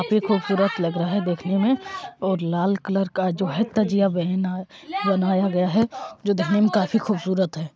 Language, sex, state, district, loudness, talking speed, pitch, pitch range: Hindi, male, Bihar, East Champaran, -22 LUFS, 185 wpm, 195 Hz, 185-210 Hz